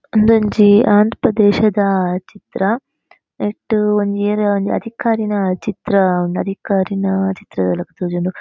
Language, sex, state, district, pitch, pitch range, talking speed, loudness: Tulu, female, Karnataka, Dakshina Kannada, 205 Hz, 190-215 Hz, 115 wpm, -16 LUFS